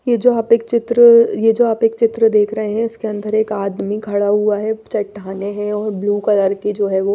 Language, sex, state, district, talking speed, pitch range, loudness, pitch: Hindi, female, Maharashtra, Mumbai Suburban, 245 wpm, 205-230 Hz, -16 LUFS, 210 Hz